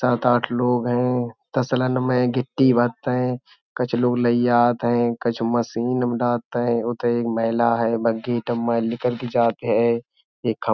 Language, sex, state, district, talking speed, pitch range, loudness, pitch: Hindi, male, Uttar Pradesh, Budaun, 170 wpm, 120-125 Hz, -21 LUFS, 120 Hz